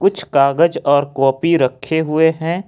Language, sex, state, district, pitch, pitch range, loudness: Hindi, male, Jharkhand, Ranchi, 160 Hz, 140-170 Hz, -15 LUFS